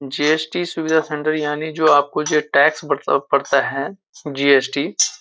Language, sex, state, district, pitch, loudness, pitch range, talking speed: Hindi, male, Uttarakhand, Uttarkashi, 150 Hz, -18 LUFS, 140-155 Hz, 170 wpm